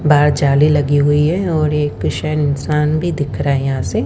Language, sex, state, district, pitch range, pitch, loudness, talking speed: Hindi, female, Haryana, Rohtak, 140-150 Hz, 145 Hz, -15 LUFS, 220 wpm